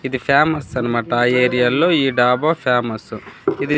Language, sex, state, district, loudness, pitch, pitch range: Telugu, female, Andhra Pradesh, Manyam, -17 LUFS, 125 Hz, 120-140 Hz